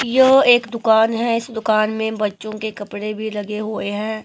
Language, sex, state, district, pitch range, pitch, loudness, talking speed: Hindi, female, Himachal Pradesh, Shimla, 215-230 Hz, 220 Hz, -18 LUFS, 195 wpm